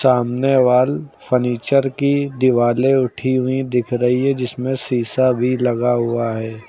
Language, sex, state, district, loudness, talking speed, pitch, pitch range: Hindi, male, Uttar Pradesh, Lucknow, -18 LUFS, 145 wpm, 125 Hz, 120-130 Hz